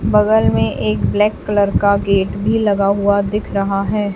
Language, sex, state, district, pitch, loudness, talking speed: Hindi, female, Chhattisgarh, Raipur, 200 Hz, -16 LUFS, 185 wpm